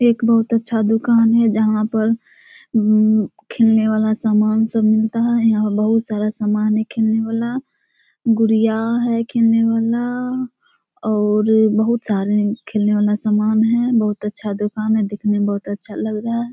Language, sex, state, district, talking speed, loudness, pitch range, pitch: Hindi, female, Bihar, Samastipur, 160 wpm, -17 LUFS, 215-230 Hz, 220 Hz